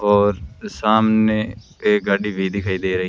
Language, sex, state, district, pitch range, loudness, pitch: Hindi, female, Rajasthan, Bikaner, 95-110 Hz, -19 LUFS, 105 Hz